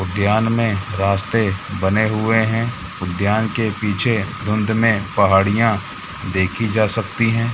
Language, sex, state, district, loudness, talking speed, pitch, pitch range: Hindi, male, Jharkhand, Jamtara, -18 LUFS, 125 wpm, 105 Hz, 100-115 Hz